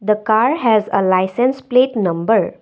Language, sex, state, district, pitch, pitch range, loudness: English, female, Assam, Kamrup Metropolitan, 215 Hz, 195-245 Hz, -16 LUFS